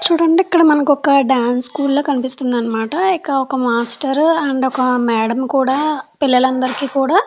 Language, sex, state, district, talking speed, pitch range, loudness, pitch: Telugu, female, Andhra Pradesh, Chittoor, 140 wpm, 255-295 Hz, -15 LUFS, 270 Hz